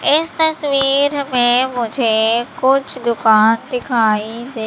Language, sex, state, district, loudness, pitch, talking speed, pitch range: Hindi, female, Madhya Pradesh, Katni, -15 LUFS, 250 Hz, 105 wpm, 225-275 Hz